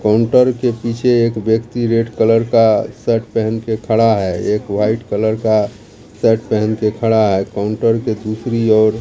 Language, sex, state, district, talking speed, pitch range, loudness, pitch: Hindi, male, Bihar, Katihar, 175 wpm, 110-115 Hz, -15 LUFS, 110 Hz